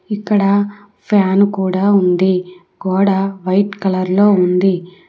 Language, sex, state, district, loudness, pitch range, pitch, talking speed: Telugu, female, Telangana, Hyderabad, -15 LUFS, 185-200 Hz, 195 Hz, 105 wpm